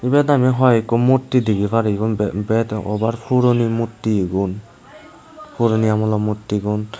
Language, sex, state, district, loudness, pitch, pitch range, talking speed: Chakma, male, Tripura, Unakoti, -18 LUFS, 115 Hz, 105-125 Hz, 135 wpm